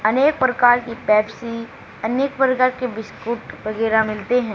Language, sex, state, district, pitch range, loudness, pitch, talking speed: Hindi, female, Haryana, Charkhi Dadri, 220-255 Hz, -20 LUFS, 235 Hz, 145 wpm